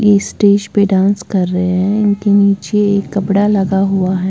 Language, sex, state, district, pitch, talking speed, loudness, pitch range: Hindi, female, Uttar Pradesh, Lalitpur, 200 Hz, 180 wpm, -13 LUFS, 190-205 Hz